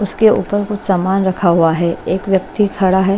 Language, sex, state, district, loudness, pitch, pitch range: Hindi, female, Bihar, West Champaran, -15 LUFS, 190 Hz, 185-205 Hz